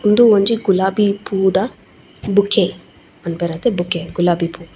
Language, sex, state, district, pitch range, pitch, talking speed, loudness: Tulu, female, Karnataka, Dakshina Kannada, 175-205 Hz, 190 Hz, 125 wpm, -17 LUFS